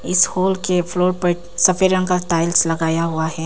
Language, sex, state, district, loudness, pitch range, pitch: Hindi, female, Arunachal Pradesh, Papum Pare, -17 LUFS, 165-185 Hz, 175 Hz